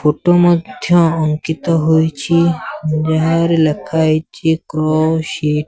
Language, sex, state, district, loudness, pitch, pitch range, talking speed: Odia, male, Odisha, Sambalpur, -15 LUFS, 160 Hz, 155-165 Hz, 95 wpm